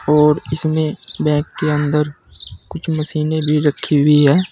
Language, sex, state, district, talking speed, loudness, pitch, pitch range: Hindi, male, Uttar Pradesh, Saharanpur, 145 wpm, -17 LUFS, 150 Hz, 150-155 Hz